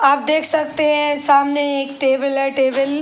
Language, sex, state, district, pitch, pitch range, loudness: Hindi, female, Uttar Pradesh, Etah, 280 Hz, 275-295 Hz, -17 LUFS